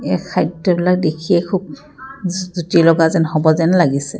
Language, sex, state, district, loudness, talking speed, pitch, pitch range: Assamese, female, Assam, Kamrup Metropolitan, -16 LUFS, 155 wpm, 170 Hz, 160-180 Hz